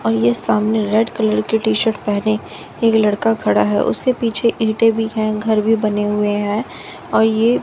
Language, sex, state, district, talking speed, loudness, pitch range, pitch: Hindi, female, Haryana, Jhajjar, 190 wpm, -17 LUFS, 210-225 Hz, 220 Hz